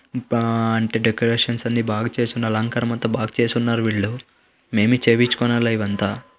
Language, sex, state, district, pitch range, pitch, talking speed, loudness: Telugu, male, Andhra Pradesh, Anantapur, 110-120 Hz, 115 Hz, 150 wpm, -20 LUFS